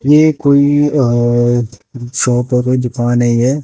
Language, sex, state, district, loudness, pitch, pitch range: Hindi, male, Haryana, Jhajjar, -13 LUFS, 125 Hz, 120-140 Hz